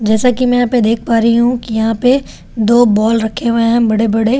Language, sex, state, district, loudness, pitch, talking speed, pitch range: Hindi, female, Delhi, New Delhi, -13 LUFS, 230 Hz, 260 wpm, 225-245 Hz